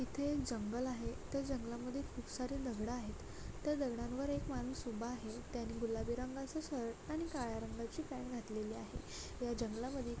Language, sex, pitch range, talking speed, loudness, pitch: Marathi, female, 230-270 Hz, 170 wpm, -43 LUFS, 245 Hz